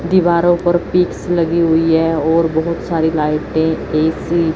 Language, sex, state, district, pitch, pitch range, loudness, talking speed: Hindi, female, Chandigarh, Chandigarh, 165 Hz, 160-175 Hz, -15 LUFS, 160 wpm